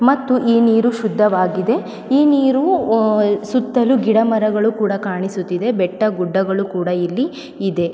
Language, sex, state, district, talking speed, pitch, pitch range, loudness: Kannada, female, Karnataka, Mysore, 115 wpm, 220 Hz, 190-250 Hz, -17 LUFS